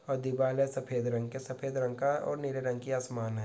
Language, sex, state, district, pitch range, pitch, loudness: Hindi, male, Uttar Pradesh, Muzaffarnagar, 125-135 Hz, 130 Hz, -33 LUFS